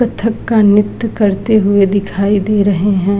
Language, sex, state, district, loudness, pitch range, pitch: Hindi, female, Uttar Pradesh, Varanasi, -13 LUFS, 200-215 Hz, 205 Hz